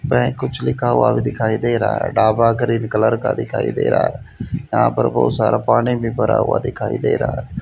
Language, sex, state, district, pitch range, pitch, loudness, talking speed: Hindi, male, Haryana, Jhajjar, 110-115 Hz, 115 Hz, -18 LUFS, 230 wpm